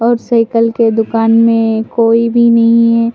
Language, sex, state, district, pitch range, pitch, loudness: Hindi, female, Delhi, New Delhi, 225-230 Hz, 230 Hz, -10 LUFS